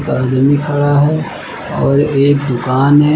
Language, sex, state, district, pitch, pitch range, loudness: Hindi, male, Uttar Pradesh, Lucknow, 145 Hz, 135-145 Hz, -13 LUFS